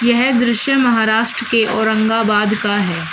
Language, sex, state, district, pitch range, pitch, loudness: Hindi, female, Uttar Pradesh, Shamli, 215-240 Hz, 225 Hz, -14 LUFS